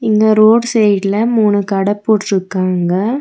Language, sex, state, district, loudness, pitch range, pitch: Tamil, female, Tamil Nadu, Nilgiris, -13 LUFS, 195-220 Hz, 205 Hz